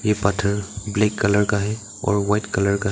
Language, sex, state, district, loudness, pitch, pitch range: Hindi, male, Arunachal Pradesh, Papum Pare, -21 LUFS, 105 Hz, 100-105 Hz